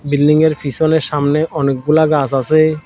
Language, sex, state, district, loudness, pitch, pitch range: Bengali, male, Tripura, South Tripura, -14 LUFS, 150 Hz, 145-155 Hz